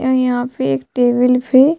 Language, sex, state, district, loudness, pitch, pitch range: Hindi, female, Chhattisgarh, Sukma, -15 LUFS, 250 Hz, 245-260 Hz